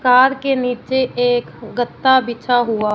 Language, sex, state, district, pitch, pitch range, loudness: Hindi, female, Punjab, Fazilka, 245 Hz, 240-260 Hz, -17 LUFS